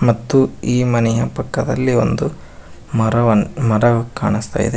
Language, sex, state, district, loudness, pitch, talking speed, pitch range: Kannada, male, Karnataka, Koppal, -17 LUFS, 120 Hz, 115 wpm, 115-130 Hz